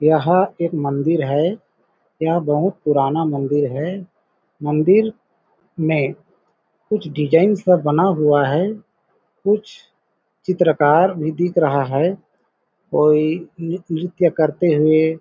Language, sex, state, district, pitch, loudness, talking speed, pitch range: Hindi, male, Chhattisgarh, Balrampur, 165 Hz, -18 LUFS, 110 wpm, 150-185 Hz